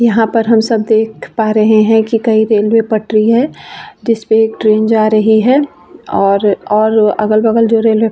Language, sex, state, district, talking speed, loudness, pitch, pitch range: Hindi, female, Bihar, Vaishali, 190 wpm, -11 LUFS, 220 Hz, 215-225 Hz